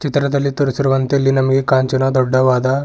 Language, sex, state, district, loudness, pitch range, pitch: Kannada, male, Karnataka, Bidar, -15 LUFS, 130-140 Hz, 135 Hz